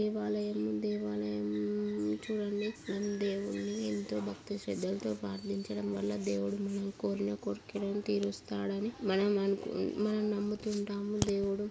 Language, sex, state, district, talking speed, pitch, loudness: Telugu, female, Andhra Pradesh, Guntur, 110 wpm, 105 Hz, -35 LUFS